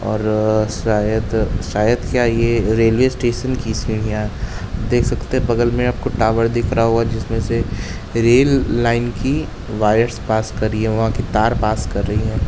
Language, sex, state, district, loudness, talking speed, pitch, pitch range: Hindi, male, Uttar Pradesh, Jalaun, -18 LUFS, 180 wpm, 115 Hz, 110-120 Hz